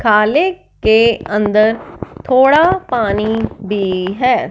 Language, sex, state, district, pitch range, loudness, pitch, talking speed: Hindi, male, Punjab, Fazilka, 210-255 Hz, -14 LUFS, 220 Hz, 95 wpm